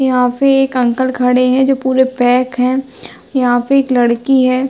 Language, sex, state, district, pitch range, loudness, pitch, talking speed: Hindi, female, Uttar Pradesh, Hamirpur, 250-265 Hz, -13 LUFS, 255 Hz, 190 wpm